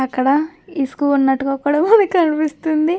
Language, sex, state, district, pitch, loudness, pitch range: Telugu, female, Andhra Pradesh, Krishna, 300 Hz, -17 LUFS, 275-320 Hz